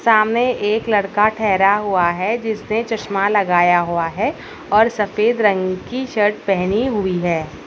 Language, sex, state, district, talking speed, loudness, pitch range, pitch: Hindi, female, Bihar, Saharsa, 150 wpm, -17 LUFS, 185-220 Hz, 205 Hz